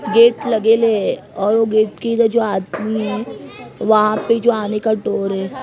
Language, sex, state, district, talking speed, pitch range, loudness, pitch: Hindi, female, Maharashtra, Mumbai Suburban, 160 wpm, 210-230 Hz, -17 LUFS, 220 Hz